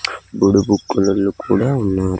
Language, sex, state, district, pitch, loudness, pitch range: Telugu, male, Andhra Pradesh, Sri Satya Sai, 100 Hz, -17 LUFS, 95-100 Hz